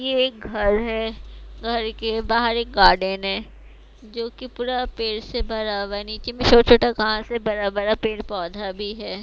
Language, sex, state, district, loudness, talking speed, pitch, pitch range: Hindi, female, Bihar, West Champaran, -22 LUFS, 190 wpm, 225 Hz, 210-235 Hz